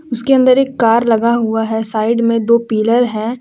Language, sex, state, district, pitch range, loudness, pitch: Hindi, female, Jharkhand, Deoghar, 225-240 Hz, -13 LUFS, 230 Hz